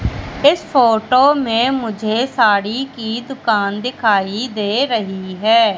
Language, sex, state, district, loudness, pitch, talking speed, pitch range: Hindi, female, Madhya Pradesh, Katni, -16 LUFS, 230 Hz, 115 wpm, 210-255 Hz